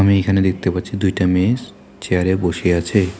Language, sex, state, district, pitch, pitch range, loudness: Bengali, male, West Bengal, Alipurduar, 95 Hz, 90-100 Hz, -18 LUFS